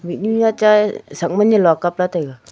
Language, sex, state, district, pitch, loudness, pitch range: Wancho, female, Arunachal Pradesh, Longding, 180 Hz, -16 LUFS, 170-215 Hz